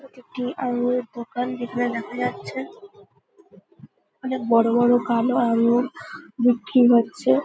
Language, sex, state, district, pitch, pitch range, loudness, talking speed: Bengali, female, West Bengal, North 24 Parganas, 245 Hz, 235-250 Hz, -22 LUFS, 115 wpm